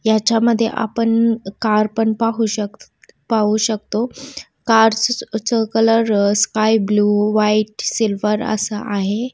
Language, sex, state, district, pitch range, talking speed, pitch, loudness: Marathi, female, Maharashtra, Solapur, 210-225 Hz, 110 wpm, 220 Hz, -17 LUFS